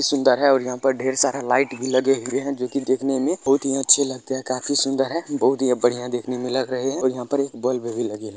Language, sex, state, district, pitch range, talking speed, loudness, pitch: Maithili, male, Bihar, Madhepura, 125-135 Hz, 300 wpm, -21 LUFS, 130 Hz